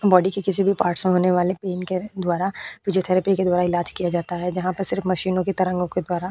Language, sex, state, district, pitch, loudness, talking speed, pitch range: Hindi, female, Uttar Pradesh, Budaun, 185 Hz, -22 LUFS, 255 wpm, 180-190 Hz